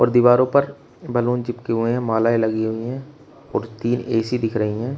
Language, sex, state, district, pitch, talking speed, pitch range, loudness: Hindi, male, Uttar Pradesh, Shamli, 120 Hz, 190 wpm, 115-125 Hz, -20 LUFS